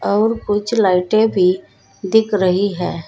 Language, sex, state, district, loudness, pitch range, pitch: Hindi, female, Uttar Pradesh, Saharanpur, -16 LUFS, 185-220 Hz, 205 Hz